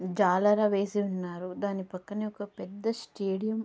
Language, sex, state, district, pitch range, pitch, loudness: Telugu, female, Andhra Pradesh, Guntur, 185-210 Hz, 200 Hz, -30 LUFS